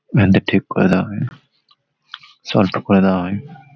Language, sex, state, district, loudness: Bengali, male, West Bengal, Malda, -17 LUFS